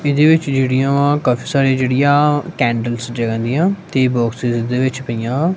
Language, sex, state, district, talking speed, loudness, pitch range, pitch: Punjabi, male, Punjab, Kapurthala, 160 wpm, -16 LUFS, 120-145 Hz, 130 Hz